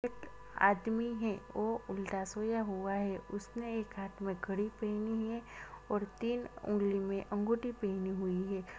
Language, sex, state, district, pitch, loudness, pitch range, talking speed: Hindi, male, Uttar Pradesh, Muzaffarnagar, 205 Hz, -37 LUFS, 195-225 Hz, 145 wpm